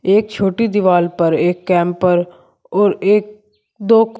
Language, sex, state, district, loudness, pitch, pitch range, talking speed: Hindi, male, Uttar Pradesh, Shamli, -15 LUFS, 200 Hz, 175-210 Hz, 130 wpm